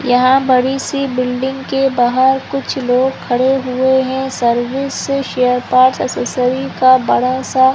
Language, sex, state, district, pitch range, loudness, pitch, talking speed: Hindi, female, Chhattisgarh, Korba, 250-270 Hz, -14 LUFS, 260 Hz, 125 wpm